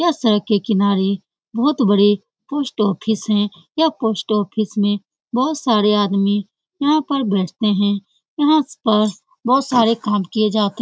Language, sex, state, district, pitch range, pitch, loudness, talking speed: Hindi, female, Bihar, Lakhisarai, 205-260 Hz, 215 Hz, -18 LUFS, 155 wpm